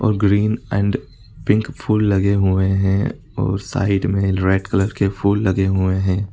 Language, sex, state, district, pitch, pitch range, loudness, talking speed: Hindi, male, Bihar, East Champaran, 100 Hz, 95-105 Hz, -18 LUFS, 170 wpm